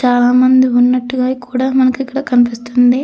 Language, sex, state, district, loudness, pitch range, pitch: Telugu, female, Andhra Pradesh, Krishna, -13 LUFS, 245-260 Hz, 255 Hz